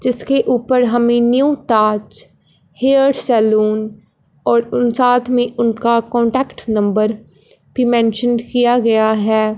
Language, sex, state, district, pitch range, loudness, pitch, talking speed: Hindi, female, Punjab, Fazilka, 220-245 Hz, -15 LUFS, 235 Hz, 120 wpm